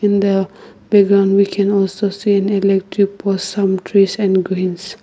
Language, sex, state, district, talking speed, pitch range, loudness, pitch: English, female, Nagaland, Kohima, 165 wpm, 195-200 Hz, -15 LUFS, 200 Hz